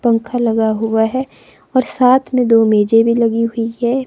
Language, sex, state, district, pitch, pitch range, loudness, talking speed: Hindi, female, Himachal Pradesh, Shimla, 230 Hz, 225-250 Hz, -14 LUFS, 190 wpm